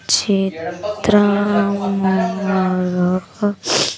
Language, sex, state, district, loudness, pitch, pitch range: Telugu, female, Andhra Pradesh, Sri Satya Sai, -18 LUFS, 195 Hz, 185-205 Hz